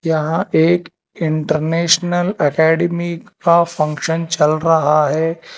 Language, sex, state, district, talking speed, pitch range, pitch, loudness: Hindi, male, Telangana, Hyderabad, 95 wpm, 155-170 Hz, 165 Hz, -16 LUFS